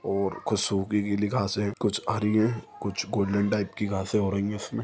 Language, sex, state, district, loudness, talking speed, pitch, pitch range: Hindi, male, Chhattisgarh, Sukma, -27 LUFS, 210 wpm, 105 Hz, 100-105 Hz